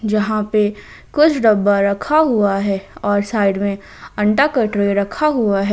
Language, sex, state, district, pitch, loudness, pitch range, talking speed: Hindi, female, Jharkhand, Ranchi, 210 Hz, -16 LUFS, 200-225 Hz, 165 wpm